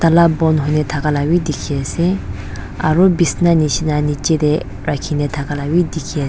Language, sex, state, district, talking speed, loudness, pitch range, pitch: Nagamese, female, Nagaland, Dimapur, 145 wpm, -16 LUFS, 145-165 Hz, 150 Hz